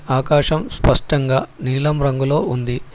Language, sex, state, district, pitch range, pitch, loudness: Telugu, male, Telangana, Hyderabad, 130-150 Hz, 135 Hz, -18 LUFS